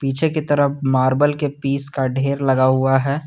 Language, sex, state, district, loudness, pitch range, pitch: Hindi, male, Jharkhand, Garhwa, -18 LUFS, 135-145 Hz, 140 Hz